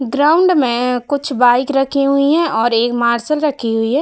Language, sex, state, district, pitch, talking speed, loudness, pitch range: Hindi, female, Uttar Pradesh, Budaun, 270 Hz, 195 wpm, -14 LUFS, 240-285 Hz